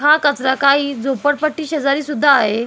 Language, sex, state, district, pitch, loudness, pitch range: Marathi, female, Maharashtra, Solapur, 285 Hz, -16 LUFS, 270-300 Hz